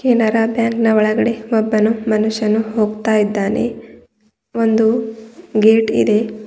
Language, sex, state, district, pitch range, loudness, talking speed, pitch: Kannada, female, Karnataka, Bidar, 215-225 Hz, -16 LUFS, 100 wpm, 220 Hz